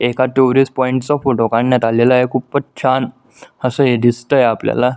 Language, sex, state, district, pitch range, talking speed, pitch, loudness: Marathi, male, Maharashtra, Solapur, 120-130 Hz, 170 wpm, 130 Hz, -15 LUFS